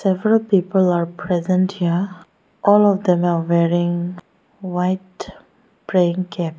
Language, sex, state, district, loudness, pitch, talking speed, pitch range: English, female, Arunachal Pradesh, Lower Dibang Valley, -19 LUFS, 180 Hz, 120 wpm, 175-195 Hz